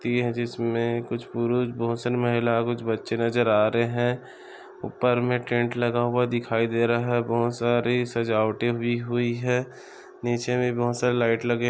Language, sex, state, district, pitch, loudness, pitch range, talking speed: Hindi, male, Maharashtra, Solapur, 120 Hz, -25 LUFS, 115-120 Hz, 170 wpm